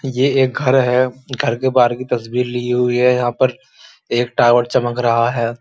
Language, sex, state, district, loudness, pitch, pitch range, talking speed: Hindi, male, Uttar Pradesh, Muzaffarnagar, -16 LUFS, 125 Hz, 120-130 Hz, 205 wpm